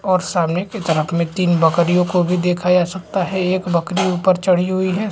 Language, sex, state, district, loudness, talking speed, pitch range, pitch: Hindi, male, Bihar, Supaul, -17 LUFS, 225 wpm, 175-185 Hz, 180 Hz